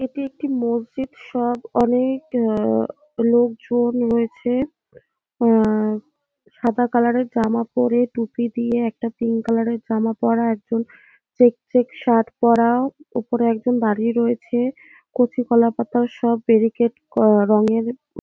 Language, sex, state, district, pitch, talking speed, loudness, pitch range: Bengali, female, West Bengal, North 24 Parganas, 235 Hz, 120 wpm, -20 LUFS, 230-245 Hz